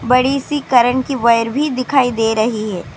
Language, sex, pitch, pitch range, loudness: Urdu, female, 250 Hz, 225-270 Hz, -15 LUFS